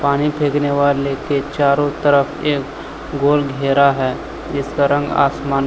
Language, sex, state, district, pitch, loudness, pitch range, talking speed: Hindi, male, Jharkhand, Deoghar, 140 Hz, -17 LUFS, 140-145 Hz, 135 wpm